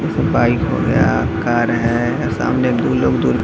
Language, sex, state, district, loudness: Hindi, male, Bihar, Gaya, -16 LUFS